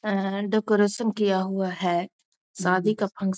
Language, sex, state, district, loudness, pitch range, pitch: Hindi, female, Bihar, Muzaffarpur, -25 LUFS, 190-210 Hz, 200 Hz